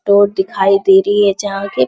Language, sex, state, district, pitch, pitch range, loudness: Hindi, male, Bihar, Jamui, 195 Hz, 190-200 Hz, -13 LUFS